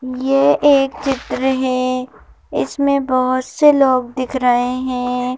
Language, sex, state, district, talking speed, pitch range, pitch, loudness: Hindi, female, Madhya Pradesh, Bhopal, 125 wpm, 255-275 Hz, 255 Hz, -16 LUFS